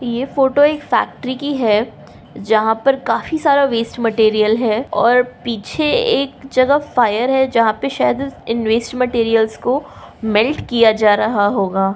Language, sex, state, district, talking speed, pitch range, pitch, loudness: Hindi, female, Uttar Pradesh, Jyotiba Phule Nagar, 160 wpm, 220-270 Hz, 240 Hz, -16 LUFS